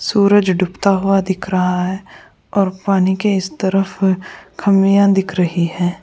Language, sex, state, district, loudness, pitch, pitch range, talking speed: Hindi, female, Goa, North and South Goa, -16 LUFS, 190 Hz, 185-195 Hz, 160 wpm